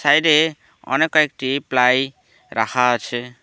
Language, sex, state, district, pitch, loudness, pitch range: Bengali, male, West Bengal, Alipurduar, 130 Hz, -18 LUFS, 125-150 Hz